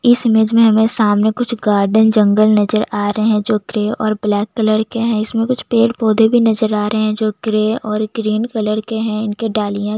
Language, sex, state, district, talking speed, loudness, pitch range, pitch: Hindi, female, Chhattisgarh, Jashpur, 235 wpm, -15 LUFS, 215-225 Hz, 215 Hz